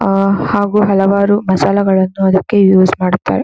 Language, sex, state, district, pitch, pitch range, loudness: Kannada, female, Karnataka, Shimoga, 195 Hz, 190-200 Hz, -12 LUFS